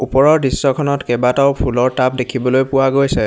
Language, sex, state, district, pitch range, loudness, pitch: Assamese, male, Assam, Hailakandi, 130-140 Hz, -15 LUFS, 135 Hz